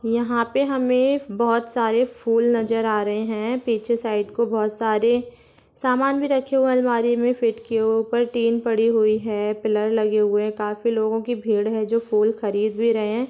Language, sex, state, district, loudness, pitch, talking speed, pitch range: Hindi, female, Jharkhand, Sahebganj, -21 LUFS, 230 Hz, 205 wpm, 215-240 Hz